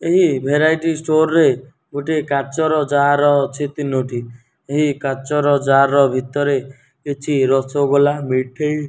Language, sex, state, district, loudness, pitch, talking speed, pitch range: Odia, male, Odisha, Nuapada, -17 LUFS, 145 Hz, 115 wpm, 135-150 Hz